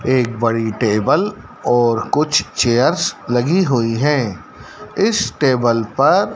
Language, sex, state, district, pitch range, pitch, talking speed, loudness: Hindi, male, Madhya Pradesh, Dhar, 115-130 Hz, 120 Hz, 115 wpm, -16 LUFS